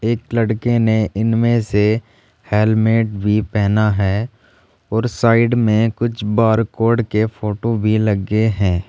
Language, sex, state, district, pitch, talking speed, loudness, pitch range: Hindi, male, Uttar Pradesh, Saharanpur, 110 Hz, 130 wpm, -17 LUFS, 105-115 Hz